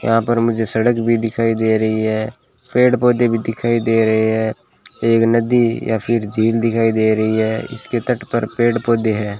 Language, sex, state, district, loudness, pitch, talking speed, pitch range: Hindi, male, Rajasthan, Bikaner, -17 LUFS, 115 Hz, 200 wpm, 110-120 Hz